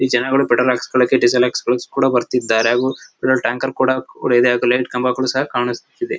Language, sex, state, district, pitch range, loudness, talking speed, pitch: Kannada, male, Karnataka, Mysore, 120-130 Hz, -17 LUFS, 185 wpm, 125 Hz